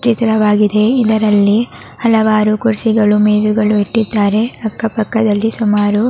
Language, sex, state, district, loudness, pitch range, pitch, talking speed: Kannada, female, Karnataka, Raichur, -13 LUFS, 210-225 Hz, 215 Hz, 100 wpm